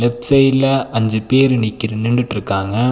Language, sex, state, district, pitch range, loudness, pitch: Tamil, male, Tamil Nadu, Nilgiris, 110-135 Hz, -16 LUFS, 120 Hz